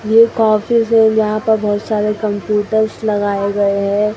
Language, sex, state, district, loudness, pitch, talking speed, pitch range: Hindi, female, Maharashtra, Mumbai Suburban, -15 LUFS, 215 Hz, 160 wpm, 205-220 Hz